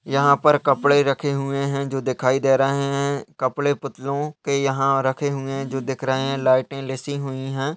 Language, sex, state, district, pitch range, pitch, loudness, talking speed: Hindi, male, Uttar Pradesh, Hamirpur, 135-140 Hz, 140 Hz, -21 LUFS, 200 wpm